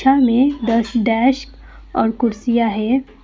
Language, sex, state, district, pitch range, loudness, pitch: Hindi, female, West Bengal, Alipurduar, 230-265 Hz, -17 LUFS, 240 Hz